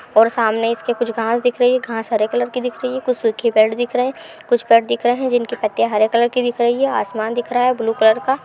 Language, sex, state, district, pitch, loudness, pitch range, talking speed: Hindi, female, Uttar Pradesh, Hamirpur, 240 Hz, -17 LUFS, 225-250 Hz, 300 wpm